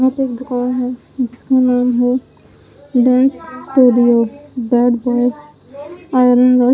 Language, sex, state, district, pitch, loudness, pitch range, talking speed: Hindi, female, Punjab, Pathankot, 250 Hz, -15 LUFS, 245-260 Hz, 80 wpm